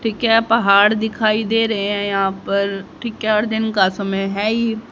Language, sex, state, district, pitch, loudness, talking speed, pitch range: Hindi, female, Haryana, Rohtak, 215 Hz, -17 LUFS, 220 wpm, 200-225 Hz